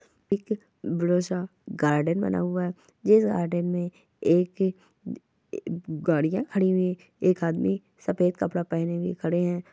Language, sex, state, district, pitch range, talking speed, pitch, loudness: Hindi, female, Goa, North and South Goa, 170-190 Hz, 135 wpm, 180 Hz, -26 LUFS